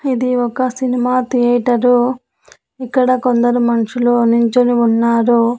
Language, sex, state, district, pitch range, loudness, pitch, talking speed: Telugu, female, Andhra Pradesh, Annamaya, 240-255 Hz, -14 LUFS, 245 Hz, 95 wpm